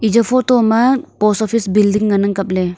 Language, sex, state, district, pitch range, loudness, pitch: Wancho, female, Arunachal Pradesh, Longding, 200-235 Hz, -14 LUFS, 215 Hz